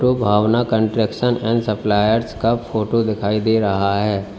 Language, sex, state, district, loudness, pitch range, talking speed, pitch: Hindi, male, Uttar Pradesh, Lalitpur, -18 LUFS, 105-115 Hz, 135 wpm, 110 Hz